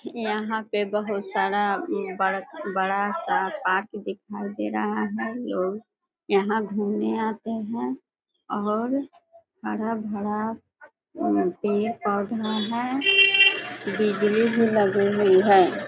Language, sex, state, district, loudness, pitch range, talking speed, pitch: Hindi, female, Bihar, East Champaran, -24 LUFS, 195-225 Hz, 110 wpm, 210 Hz